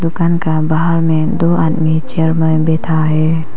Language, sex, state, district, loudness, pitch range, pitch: Hindi, female, Arunachal Pradesh, Papum Pare, -14 LUFS, 160-165 Hz, 160 Hz